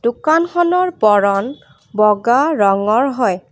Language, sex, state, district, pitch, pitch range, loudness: Assamese, female, Assam, Kamrup Metropolitan, 235 Hz, 205-310 Hz, -15 LUFS